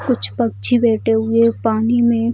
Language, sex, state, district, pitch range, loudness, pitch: Hindi, female, Bihar, Bhagalpur, 220-230 Hz, -16 LUFS, 230 Hz